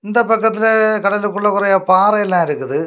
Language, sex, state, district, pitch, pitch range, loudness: Tamil, male, Tamil Nadu, Kanyakumari, 205 Hz, 195-220 Hz, -14 LUFS